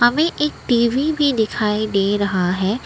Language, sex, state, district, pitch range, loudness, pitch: Hindi, female, Assam, Kamrup Metropolitan, 205-275 Hz, -18 LUFS, 220 Hz